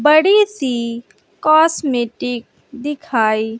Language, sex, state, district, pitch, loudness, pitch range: Hindi, female, Bihar, West Champaran, 260 Hz, -16 LUFS, 235-310 Hz